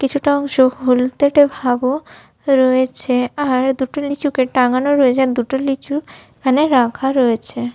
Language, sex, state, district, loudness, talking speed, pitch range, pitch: Bengali, female, Jharkhand, Sahebganj, -16 LUFS, 125 wpm, 255-285 Hz, 265 Hz